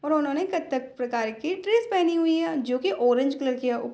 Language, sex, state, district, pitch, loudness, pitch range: Hindi, female, Bihar, Darbhanga, 280 Hz, -25 LUFS, 250-335 Hz